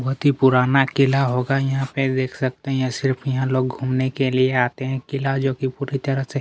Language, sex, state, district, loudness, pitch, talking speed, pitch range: Hindi, male, Chhattisgarh, Kabirdham, -21 LUFS, 135 Hz, 235 wpm, 130-135 Hz